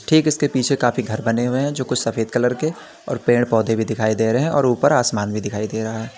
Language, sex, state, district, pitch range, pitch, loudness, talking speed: Hindi, male, Uttar Pradesh, Lalitpur, 110-135 Hz, 120 Hz, -19 LUFS, 280 wpm